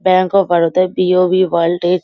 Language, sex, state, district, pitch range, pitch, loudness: Bengali, female, West Bengal, Kolkata, 175-185 Hz, 185 Hz, -13 LUFS